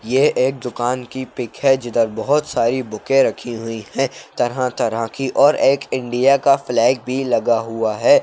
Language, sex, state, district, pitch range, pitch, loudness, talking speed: Kumaoni, male, Uttarakhand, Uttarkashi, 115-135 Hz, 125 Hz, -18 LUFS, 180 wpm